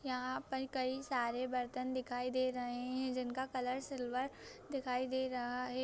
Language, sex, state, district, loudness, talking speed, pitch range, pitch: Hindi, female, Bihar, Jahanabad, -39 LUFS, 175 wpm, 250-260 Hz, 255 Hz